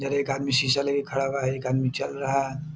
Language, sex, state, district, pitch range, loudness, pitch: Hindi, male, Bihar, Saharsa, 135-140 Hz, -25 LUFS, 135 Hz